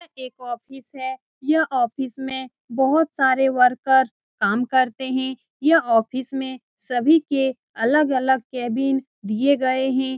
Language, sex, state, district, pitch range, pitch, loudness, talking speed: Hindi, female, Bihar, Saran, 250-270 Hz, 260 Hz, -21 LUFS, 135 wpm